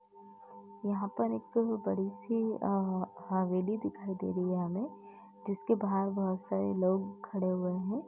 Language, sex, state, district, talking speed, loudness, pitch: Hindi, female, Uttar Pradesh, Etah, 150 wpm, -34 LUFS, 185 Hz